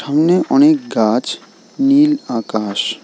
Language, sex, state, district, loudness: Bengali, male, West Bengal, Alipurduar, -15 LUFS